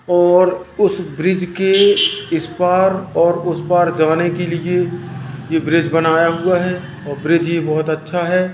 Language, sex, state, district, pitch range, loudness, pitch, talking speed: Hindi, male, Madhya Pradesh, Katni, 165-180 Hz, -16 LUFS, 175 Hz, 170 wpm